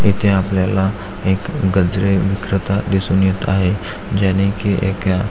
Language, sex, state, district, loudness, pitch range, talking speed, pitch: Marathi, male, Maharashtra, Aurangabad, -17 LUFS, 95-100 Hz, 125 wpm, 95 Hz